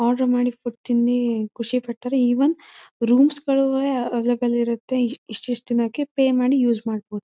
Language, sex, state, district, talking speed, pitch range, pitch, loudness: Kannada, female, Karnataka, Chamarajanagar, 135 wpm, 235-260 Hz, 245 Hz, -21 LUFS